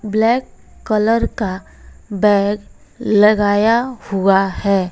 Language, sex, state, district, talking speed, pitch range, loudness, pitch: Hindi, female, Bihar, West Champaran, 85 wpm, 200-220 Hz, -16 LUFS, 210 Hz